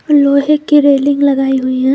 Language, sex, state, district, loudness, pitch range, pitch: Hindi, female, Jharkhand, Garhwa, -11 LUFS, 270-290 Hz, 280 Hz